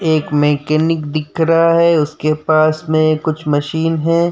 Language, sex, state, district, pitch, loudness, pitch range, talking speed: Hindi, male, Uttar Pradesh, Jyotiba Phule Nagar, 155 Hz, -15 LUFS, 155-165 Hz, 155 wpm